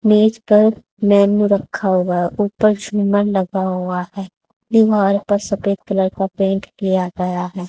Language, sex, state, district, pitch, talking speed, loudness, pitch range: Hindi, female, Haryana, Charkhi Dadri, 200 Hz, 150 wpm, -17 LUFS, 185-210 Hz